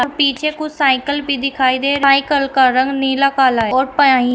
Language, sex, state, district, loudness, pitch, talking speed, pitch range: Hindi, female, Uttar Pradesh, Shamli, -15 LUFS, 275 Hz, 205 wpm, 260-285 Hz